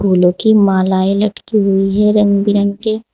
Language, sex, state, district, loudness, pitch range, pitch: Hindi, female, Uttar Pradesh, Saharanpur, -13 LUFS, 195-210 Hz, 200 Hz